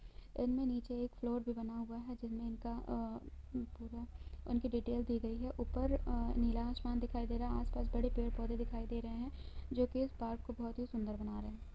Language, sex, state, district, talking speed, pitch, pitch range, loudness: Hindi, female, Bihar, East Champaran, 230 wpm, 235 Hz, 225-245 Hz, -41 LUFS